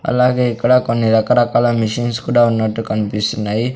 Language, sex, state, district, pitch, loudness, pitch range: Telugu, male, Andhra Pradesh, Sri Satya Sai, 115 Hz, -16 LUFS, 110-120 Hz